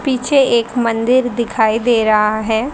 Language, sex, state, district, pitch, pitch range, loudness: Hindi, female, Haryana, Charkhi Dadri, 235 Hz, 220-250 Hz, -15 LUFS